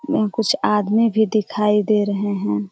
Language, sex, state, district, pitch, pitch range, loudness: Hindi, female, Jharkhand, Jamtara, 210 Hz, 205-220 Hz, -19 LUFS